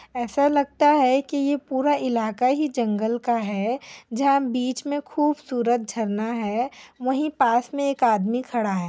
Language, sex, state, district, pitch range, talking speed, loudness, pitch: Hindi, female, Chhattisgarh, Korba, 235-280 Hz, 160 wpm, -23 LUFS, 255 Hz